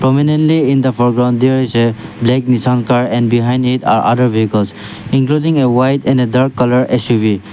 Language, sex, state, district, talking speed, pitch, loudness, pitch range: English, male, Nagaland, Dimapur, 175 wpm, 125 Hz, -13 LUFS, 120-130 Hz